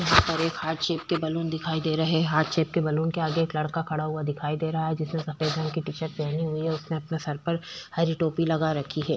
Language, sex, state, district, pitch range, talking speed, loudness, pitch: Hindi, female, Chhattisgarh, Korba, 155-165 Hz, 280 wpm, -27 LUFS, 160 Hz